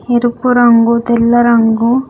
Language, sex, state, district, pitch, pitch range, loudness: Telugu, female, Andhra Pradesh, Sri Satya Sai, 235 Hz, 235-245 Hz, -10 LUFS